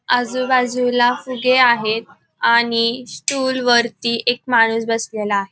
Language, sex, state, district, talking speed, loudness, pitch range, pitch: Marathi, female, Maharashtra, Pune, 120 wpm, -17 LUFS, 230-250 Hz, 240 Hz